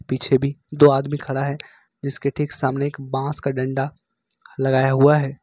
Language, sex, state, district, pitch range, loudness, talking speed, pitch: Hindi, male, Uttar Pradesh, Lucknow, 135-145 Hz, -20 LUFS, 175 wpm, 140 Hz